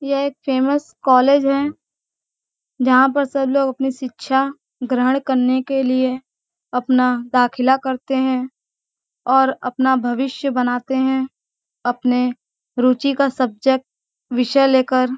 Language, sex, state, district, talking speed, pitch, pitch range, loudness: Hindi, female, Uttar Pradesh, Varanasi, 125 wpm, 260 Hz, 255-270 Hz, -18 LUFS